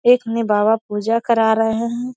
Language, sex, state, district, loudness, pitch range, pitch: Hindi, female, Bihar, Saharsa, -17 LUFS, 220-235 Hz, 225 Hz